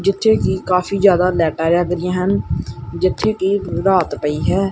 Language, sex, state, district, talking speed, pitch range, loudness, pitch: Punjabi, male, Punjab, Kapurthala, 165 wpm, 175-195 Hz, -17 LUFS, 185 Hz